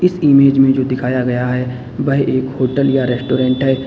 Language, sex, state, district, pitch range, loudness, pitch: Hindi, male, Uttar Pradesh, Lalitpur, 125-135 Hz, -15 LUFS, 130 Hz